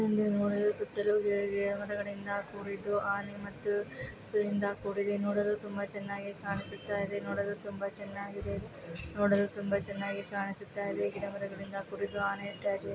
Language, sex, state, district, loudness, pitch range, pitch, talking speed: Kannada, female, Karnataka, Chamarajanagar, -34 LUFS, 200-205 Hz, 200 Hz, 125 wpm